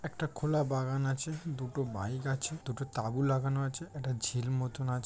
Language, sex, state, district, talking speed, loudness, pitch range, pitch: Bengali, male, West Bengal, Jhargram, 180 wpm, -34 LUFS, 130-150 Hz, 135 Hz